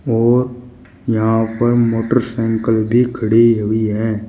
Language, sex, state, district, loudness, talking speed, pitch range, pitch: Hindi, male, Uttar Pradesh, Shamli, -15 LUFS, 110 wpm, 110-120 Hz, 115 Hz